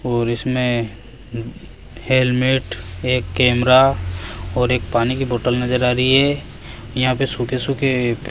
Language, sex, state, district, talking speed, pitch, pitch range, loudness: Hindi, male, Rajasthan, Jaipur, 135 wpm, 125 Hz, 115-130 Hz, -18 LUFS